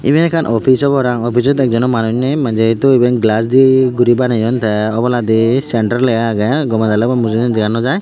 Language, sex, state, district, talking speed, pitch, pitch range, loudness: Chakma, male, Tripura, Unakoti, 195 wpm, 120 Hz, 115-130 Hz, -13 LUFS